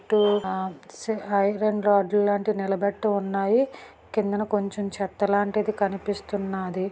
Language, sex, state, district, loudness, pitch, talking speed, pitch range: Telugu, female, Andhra Pradesh, Anantapur, -25 LUFS, 205 Hz, 120 wpm, 195-210 Hz